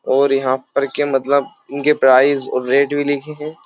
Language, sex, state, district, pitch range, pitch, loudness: Hindi, male, Uttar Pradesh, Jyotiba Phule Nagar, 135-145 Hz, 140 Hz, -16 LUFS